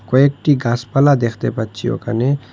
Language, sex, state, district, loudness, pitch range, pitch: Bengali, male, Assam, Hailakandi, -17 LUFS, 120-140 Hz, 130 Hz